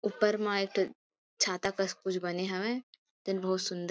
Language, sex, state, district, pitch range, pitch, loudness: Chhattisgarhi, female, Chhattisgarh, Kabirdham, 185-205 Hz, 195 Hz, -32 LUFS